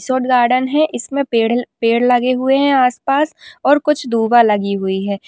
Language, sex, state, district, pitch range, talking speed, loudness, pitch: Hindi, female, Bihar, Kishanganj, 230-275 Hz, 170 wpm, -15 LUFS, 250 Hz